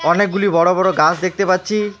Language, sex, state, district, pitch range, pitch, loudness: Bengali, male, West Bengal, Alipurduar, 180-205 Hz, 190 Hz, -16 LUFS